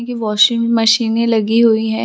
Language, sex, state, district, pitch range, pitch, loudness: Hindi, female, Jharkhand, Sahebganj, 220-235 Hz, 225 Hz, -14 LUFS